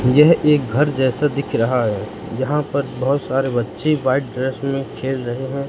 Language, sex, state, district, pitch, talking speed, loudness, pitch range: Hindi, male, Madhya Pradesh, Katni, 135 Hz, 190 wpm, -19 LUFS, 125-140 Hz